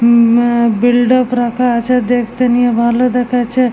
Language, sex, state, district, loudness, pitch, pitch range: Bengali, female, West Bengal, Jalpaiguri, -12 LUFS, 245 Hz, 235-250 Hz